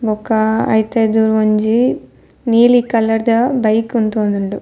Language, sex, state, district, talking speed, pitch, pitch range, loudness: Tulu, female, Karnataka, Dakshina Kannada, 90 wpm, 220 Hz, 215-230 Hz, -14 LUFS